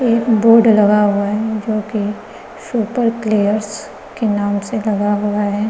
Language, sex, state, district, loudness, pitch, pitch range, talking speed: Hindi, female, Uttar Pradesh, Gorakhpur, -16 LUFS, 215 Hz, 205-225 Hz, 160 wpm